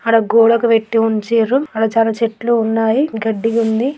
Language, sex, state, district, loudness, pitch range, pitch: Telugu, female, Andhra Pradesh, Krishna, -15 LUFS, 225-230 Hz, 225 Hz